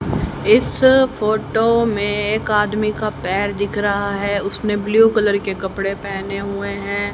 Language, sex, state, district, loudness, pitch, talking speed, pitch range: Hindi, female, Haryana, Rohtak, -18 LUFS, 205 Hz, 150 wpm, 200-215 Hz